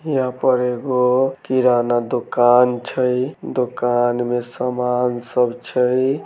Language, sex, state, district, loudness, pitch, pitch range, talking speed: Maithili, male, Bihar, Samastipur, -18 LUFS, 125 Hz, 120-130 Hz, 105 wpm